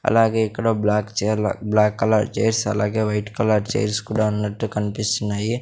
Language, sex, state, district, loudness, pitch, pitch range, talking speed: Telugu, male, Andhra Pradesh, Sri Satya Sai, -21 LUFS, 105 Hz, 105-110 Hz, 150 wpm